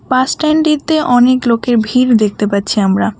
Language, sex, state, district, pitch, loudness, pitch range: Bengali, female, West Bengal, Alipurduar, 245 Hz, -12 LUFS, 210-260 Hz